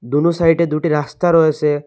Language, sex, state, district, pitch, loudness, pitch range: Bengali, male, Assam, Hailakandi, 155 Hz, -15 LUFS, 150-165 Hz